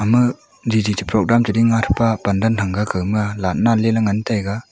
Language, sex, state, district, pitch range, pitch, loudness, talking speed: Wancho, female, Arunachal Pradesh, Longding, 100-115 Hz, 110 Hz, -18 LUFS, 190 wpm